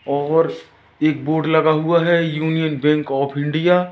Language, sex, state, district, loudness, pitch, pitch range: Hindi, male, Madhya Pradesh, Katni, -18 LUFS, 155 Hz, 145-160 Hz